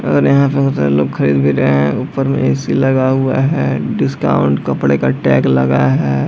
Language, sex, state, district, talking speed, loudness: Hindi, male, Bihar, Madhepura, 200 wpm, -14 LUFS